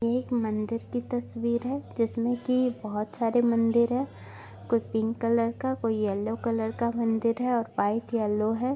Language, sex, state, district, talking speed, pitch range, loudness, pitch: Bhojpuri, female, Bihar, Saran, 180 wpm, 225-240 Hz, -28 LUFS, 230 Hz